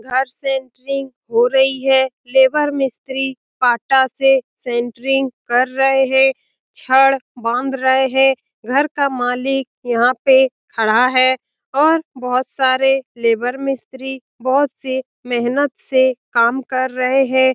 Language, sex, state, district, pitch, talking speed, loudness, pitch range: Hindi, female, Bihar, Lakhisarai, 260 Hz, 130 wpm, -16 LUFS, 250-270 Hz